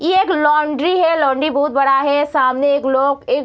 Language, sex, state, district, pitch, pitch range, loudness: Hindi, female, Bihar, Kishanganj, 290 Hz, 275-325 Hz, -15 LUFS